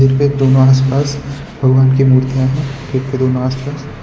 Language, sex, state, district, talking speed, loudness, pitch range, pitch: Hindi, male, Gujarat, Valsad, 105 wpm, -13 LUFS, 130-140 Hz, 135 Hz